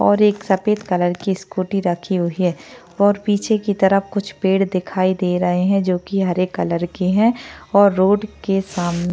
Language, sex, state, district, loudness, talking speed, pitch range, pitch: Hindi, female, Maharashtra, Chandrapur, -18 LUFS, 195 wpm, 180-205 Hz, 190 Hz